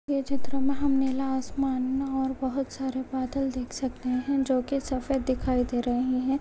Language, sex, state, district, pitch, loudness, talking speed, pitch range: Hindi, female, Chhattisgarh, Bastar, 265 Hz, -28 LUFS, 185 wpm, 255-275 Hz